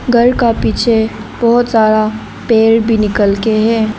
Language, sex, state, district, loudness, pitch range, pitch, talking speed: Hindi, female, Arunachal Pradesh, Lower Dibang Valley, -12 LUFS, 215-235 Hz, 225 Hz, 150 wpm